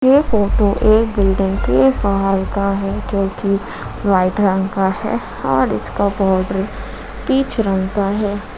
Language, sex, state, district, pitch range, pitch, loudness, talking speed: Hindi, female, Jharkhand, Ranchi, 190-210 Hz, 200 Hz, -17 LUFS, 140 wpm